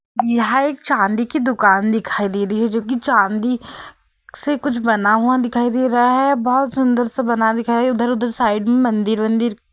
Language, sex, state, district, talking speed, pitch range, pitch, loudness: Hindi, female, Uttar Pradesh, Hamirpur, 190 wpm, 225-255 Hz, 240 Hz, -17 LUFS